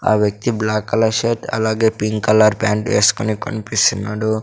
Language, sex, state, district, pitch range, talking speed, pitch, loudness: Telugu, male, Andhra Pradesh, Sri Satya Sai, 105-110 Hz, 150 wpm, 110 Hz, -17 LUFS